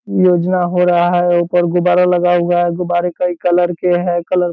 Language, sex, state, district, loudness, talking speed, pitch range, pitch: Hindi, male, Bihar, Purnia, -14 LUFS, 225 wpm, 175-180 Hz, 175 Hz